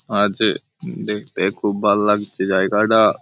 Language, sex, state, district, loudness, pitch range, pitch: Bengali, male, West Bengal, Malda, -18 LUFS, 100-105 Hz, 105 Hz